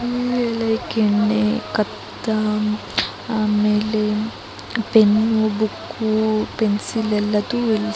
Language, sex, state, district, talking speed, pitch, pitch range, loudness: Kannada, female, Karnataka, Raichur, 45 wpm, 215 Hz, 210-225 Hz, -20 LUFS